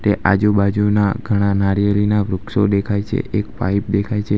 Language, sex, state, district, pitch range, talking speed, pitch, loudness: Gujarati, male, Gujarat, Valsad, 100-105 Hz, 150 wpm, 100 Hz, -18 LUFS